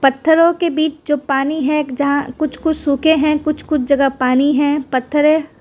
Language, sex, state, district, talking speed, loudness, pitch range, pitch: Hindi, female, Gujarat, Valsad, 190 wpm, -16 LUFS, 275-310 Hz, 295 Hz